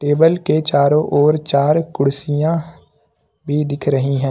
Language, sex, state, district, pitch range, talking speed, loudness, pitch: Hindi, male, Uttar Pradesh, Lucknow, 140-155 Hz, 140 wpm, -16 LUFS, 145 Hz